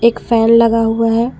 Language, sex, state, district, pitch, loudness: Hindi, female, Jharkhand, Garhwa, 230 Hz, -13 LUFS